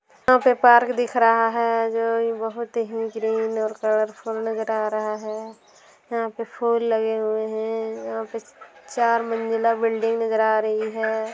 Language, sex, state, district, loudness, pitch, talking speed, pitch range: Bhojpuri, female, Bihar, Saran, -22 LUFS, 225 Hz, 170 wpm, 220-230 Hz